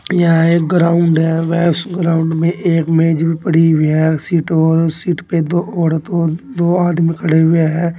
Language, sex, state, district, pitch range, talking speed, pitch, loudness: Hindi, male, Uttar Pradesh, Saharanpur, 160-170 Hz, 205 wpm, 165 Hz, -14 LUFS